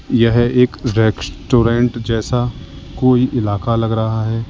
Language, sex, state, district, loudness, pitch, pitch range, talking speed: Hindi, male, Uttar Pradesh, Lalitpur, -16 LUFS, 115 Hz, 110-120 Hz, 120 wpm